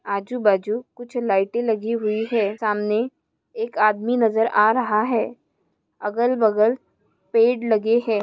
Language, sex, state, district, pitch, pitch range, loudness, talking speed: Hindi, female, Maharashtra, Aurangabad, 225 Hz, 210-235 Hz, -21 LUFS, 140 wpm